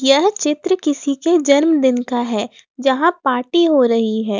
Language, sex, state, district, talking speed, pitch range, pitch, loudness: Hindi, female, Jharkhand, Ranchi, 165 wpm, 245-325 Hz, 275 Hz, -16 LUFS